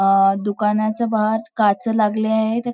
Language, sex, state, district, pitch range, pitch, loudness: Marathi, female, Maharashtra, Nagpur, 205-220 Hz, 215 Hz, -19 LUFS